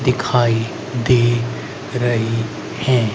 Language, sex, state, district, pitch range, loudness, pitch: Hindi, male, Haryana, Rohtak, 115-125 Hz, -19 LUFS, 120 Hz